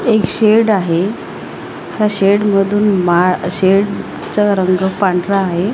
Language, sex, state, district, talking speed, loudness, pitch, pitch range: Marathi, female, Maharashtra, Washim, 125 wpm, -14 LUFS, 195 Hz, 185-210 Hz